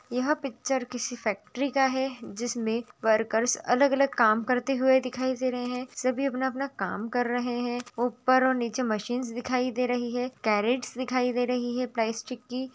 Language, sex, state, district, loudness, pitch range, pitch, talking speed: Hindi, female, Jharkhand, Sahebganj, -27 LUFS, 240-260 Hz, 250 Hz, 180 wpm